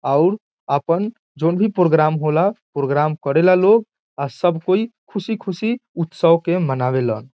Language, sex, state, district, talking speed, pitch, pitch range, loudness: Bhojpuri, male, Bihar, Saran, 140 wpm, 170 Hz, 150-200 Hz, -18 LUFS